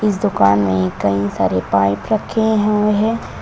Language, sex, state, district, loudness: Hindi, female, Uttar Pradesh, Shamli, -16 LUFS